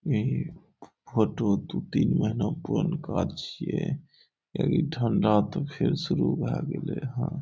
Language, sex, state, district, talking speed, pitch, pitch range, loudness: Maithili, male, Bihar, Saharsa, 115 wpm, 155 Hz, 120-170 Hz, -28 LUFS